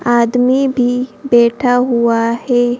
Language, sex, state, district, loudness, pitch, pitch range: Hindi, female, Madhya Pradesh, Bhopal, -13 LUFS, 245 Hz, 235-250 Hz